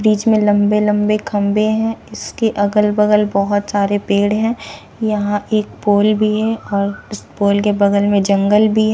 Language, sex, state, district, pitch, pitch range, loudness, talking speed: Hindi, female, Bihar, Katihar, 210 Hz, 205-215 Hz, -15 LUFS, 180 wpm